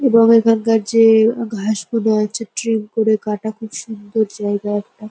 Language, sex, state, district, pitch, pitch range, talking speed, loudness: Bengali, female, West Bengal, North 24 Parganas, 220 Hz, 210-225 Hz, 140 wpm, -17 LUFS